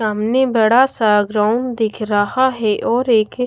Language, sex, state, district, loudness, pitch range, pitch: Hindi, female, Odisha, Khordha, -16 LUFS, 210-250 Hz, 225 Hz